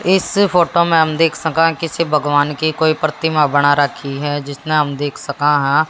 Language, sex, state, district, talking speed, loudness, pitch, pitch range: Hindi, female, Haryana, Jhajjar, 205 wpm, -16 LUFS, 155 Hz, 145-165 Hz